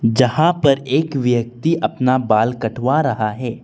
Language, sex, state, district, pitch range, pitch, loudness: Hindi, male, Arunachal Pradesh, Lower Dibang Valley, 120-140 Hz, 125 Hz, -17 LUFS